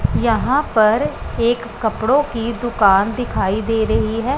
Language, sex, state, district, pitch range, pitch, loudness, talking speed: Hindi, female, Punjab, Pathankot, 220-240 Hz, 230 Hz, -18 LUFS, 135 wpm